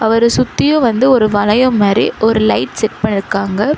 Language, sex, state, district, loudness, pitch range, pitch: Tamil, female, Tamil Nadu, Chennai, -13 LUFS, 210-245 Hz, 220 Hz